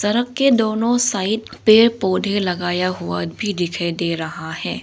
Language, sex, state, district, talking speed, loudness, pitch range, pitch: Hindi, female, Arunachal Pradesh, Longding, 135 wpm, -19 LUFS, 175-225 Hz, 195 Hz